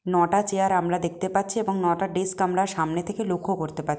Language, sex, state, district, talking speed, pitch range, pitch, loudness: Bengali, female, West Bengal, Jalpaiguri, 210 wpm, 175-195 Hz, 185 Hz, -25 LUFS